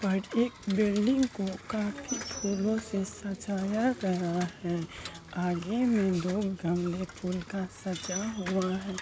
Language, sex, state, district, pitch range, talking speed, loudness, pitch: Hindi, female, Bihar, Muzaffarpur, 185-210 Hz, 115 wpm, -31 LUFS, 195 Hz